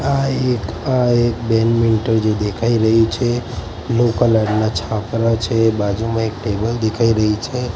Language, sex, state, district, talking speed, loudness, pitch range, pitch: Gujarati, male, Gujarat, Gandhinagar, 155 wpm, -17 LUFS, 110-120 Hz, 115 Hz